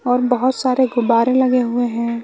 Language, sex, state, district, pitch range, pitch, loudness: Hindi, male, Bihar, West Champaran, 235-255 Hz, 245 Hz, -17 LUFS